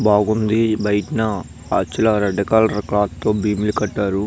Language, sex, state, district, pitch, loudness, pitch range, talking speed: Telugu, male, Andhra Pradesh, Visakhapatnam, 105 Hz, -19 LUFS, 105-110 Hz, 110 wpm